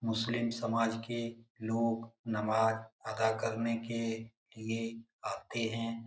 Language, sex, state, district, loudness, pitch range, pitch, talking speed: Hindi, male, Bihar, Lakhisarai, -35 LUFS, 110-115 Hz, 115 Hz, 120 wpm